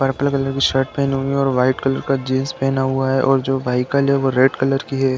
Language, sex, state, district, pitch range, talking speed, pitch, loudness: Hindi, male, Uttar Pradesh, Deoria, 130-135 Hz, 280 wpm, 135 Hz, -18 LUFS